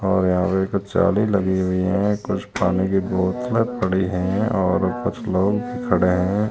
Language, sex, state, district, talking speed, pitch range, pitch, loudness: Hindi, male, Rajasthan, Jaisalmer, 185 wpm, 95-105 Hz, 95 Hz, -21 LUFS